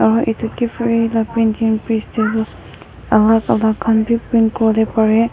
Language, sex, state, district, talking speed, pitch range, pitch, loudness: Nagamese, female, Nagaland, Kohima, 170 wpm, 220-230 Hz, 225 Hz, -16 LUFS